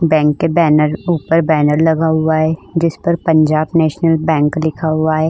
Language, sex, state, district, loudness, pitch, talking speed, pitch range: Hindi, female, Uttar Pradesh, Budaun, -14 LUFS, 160 Hz, 180 wpm, 155-165 Hz